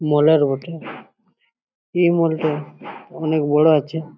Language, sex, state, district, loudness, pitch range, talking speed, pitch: Bengali, male, West Bengal, Jhargram, -18 LUFS, 150-165 Hz, 130 wpm, 155 Hz